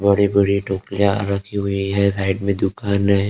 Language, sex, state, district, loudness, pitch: Hindi, male, Maharashtra, Gondia, -19 LUFS, 100 Hz